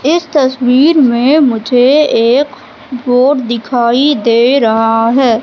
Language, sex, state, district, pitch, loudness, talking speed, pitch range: Hindi, female, Madhya Pradesh, Katni, 250 Hz, -10 LUFS, 110 wpm, 235-280 Hz